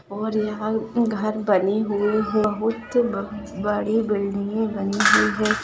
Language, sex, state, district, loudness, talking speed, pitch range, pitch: Hindi, female, Maharashtra, Solapur, -22 LUFS, 130 wpm, 205-220 Hz, 210 Hz